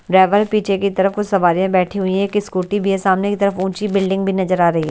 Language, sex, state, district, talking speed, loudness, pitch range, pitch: Hindi, male, Delhi, New Delhi, 270 wpm, -17 LUFS, 190-200 Hz, 195 Hz